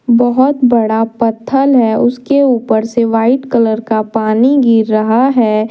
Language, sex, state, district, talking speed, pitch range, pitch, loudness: Hindi, female, Jharkhand, Deoghar, 145 wpm, 220-255 Hz, 235 Hz, -12 LUFS